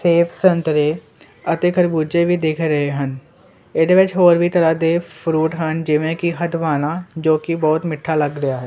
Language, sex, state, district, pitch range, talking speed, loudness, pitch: Punjabi, male, Punjab, Kapurthala, 155-170 Hz, 180 wpm, -17 LUFS, 165 Hz